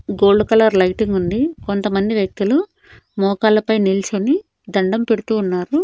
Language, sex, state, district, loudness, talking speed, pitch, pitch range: Telugu, female, Andhra Pradesh, Annamaya, -17 LUFS, 115 wpm, 210 Hz, 195-225 Hz